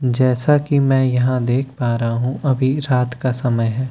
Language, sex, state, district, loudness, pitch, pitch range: Hindi, male, Bihar, Katihar, -18 LUFS, 130 Hz, 125-135 Hz